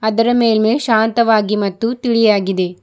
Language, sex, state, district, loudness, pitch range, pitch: Kannada, female, Karnataka, Bidar, -15 LUFS, 210-230 Hz, 220 Hz